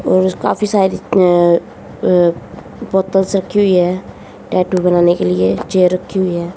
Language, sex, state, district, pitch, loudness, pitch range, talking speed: Hindi, female, Haryana, Jhajjar, 185 Hz, -14 LUFS, 175-190 Hz, 145 wpm